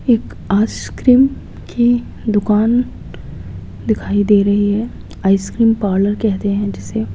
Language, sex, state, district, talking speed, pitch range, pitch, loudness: Hindi, female, Rajasthan, Jaipur, 110 wpm, 200-230 Hz, 210 Hz, -16 LUFS